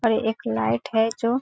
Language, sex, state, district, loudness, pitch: Hindi, female, Chhattisgarh, Balrampur, -23 LUFS, 225 Hz